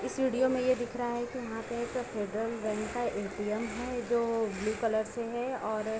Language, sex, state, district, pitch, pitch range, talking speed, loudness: Hindi, female, Jharkhand, Jamtara, 235 Hz, 220-245 Hz, 230 wpm, -33 LUFS